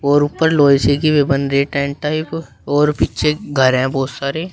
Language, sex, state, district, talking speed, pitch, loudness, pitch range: Hindi, male, Uttar Pradesh, Shamli, 240 wpm, 145 Hz, -16 LUFS, 140-150 Hz